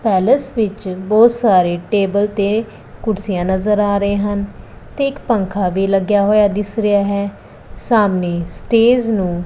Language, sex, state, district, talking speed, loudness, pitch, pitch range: Punjabi, female, Punjab, Pathankot, 145 wpm, -16 LUFS, 205 Hz, 195-220 Hz